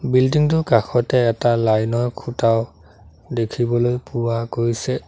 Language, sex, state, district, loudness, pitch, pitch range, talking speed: Assamese, male, Assam, Sonitpur, -19 LUFS, 120 Hz, 115-125 Hz, 120 wpm